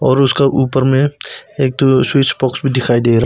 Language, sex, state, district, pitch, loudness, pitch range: Hindi, male, Arunachal Pradesh, Papum Pare, 135 Hz, -14 LUFS, 130-135 Hz